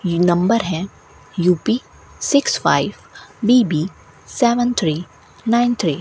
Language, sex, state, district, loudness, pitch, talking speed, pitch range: Hindi, female, Rajasthan, Bikaner, -18 LUFS, 195 Hz, 120 wpm, 170-240 Hz